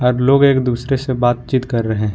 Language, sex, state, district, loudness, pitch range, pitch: Hindi, male, Jharkhand, Ranchi, -16 LUFS, 120-130 Hz, 125 Hz